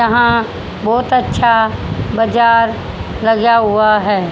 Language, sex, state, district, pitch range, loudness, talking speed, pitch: Hindi, female, Haryana, Charkhi Dadri, 220-235 Hz, -13 LUFS, 95 wpm, 230 Hz